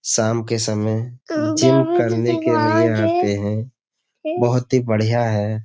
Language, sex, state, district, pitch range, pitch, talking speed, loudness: Hindi, male, Uttar Pradesh, Budaun, 110-125 Hz, 115 Hz, 140 wpm, -19 LUFS